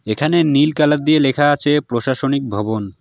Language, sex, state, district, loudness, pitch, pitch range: Bengali, male, West Bengal, Alipurduar, -16 LUFS, 140 Hz, 120-150 Hz